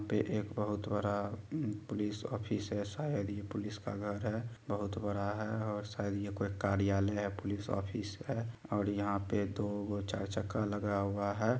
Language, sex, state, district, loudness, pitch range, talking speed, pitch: Angika, male, Bihar, Supaul, -37 LUFS, 100-105 Hz, 185 wpm, 105 Hz